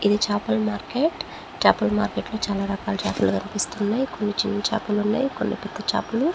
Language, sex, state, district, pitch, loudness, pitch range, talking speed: Telugu, female, Andhra Pradesh, Chittoor, 210 Hz, -24 LUFS, 205-230 Hz, 150 wpm